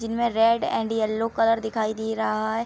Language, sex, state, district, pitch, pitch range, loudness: Hindi, female, Bihar, Araria, 225 Hz, 220-230 Hz, -24 LUFS